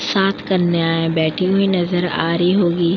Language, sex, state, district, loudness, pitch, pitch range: Hindi, female, Uttar Pradesh, Jyotiba Phule Nagar, -17 LUFS, 175 Hz, 170-185 Hz